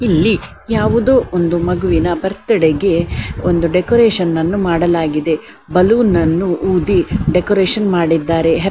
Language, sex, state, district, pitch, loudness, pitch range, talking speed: Kannada, female, Karnataka, Dakshina Kannada, 175 Hz, -14 LUFS, 165-190 Hz, 105 wpm